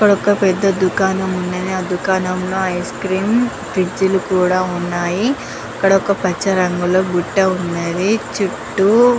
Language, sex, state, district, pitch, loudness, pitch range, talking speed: Telugu, female, Andhra Pradesh, Guntur, 190 Hz, -17 LUFS, 180-195 Hz, 145 wpm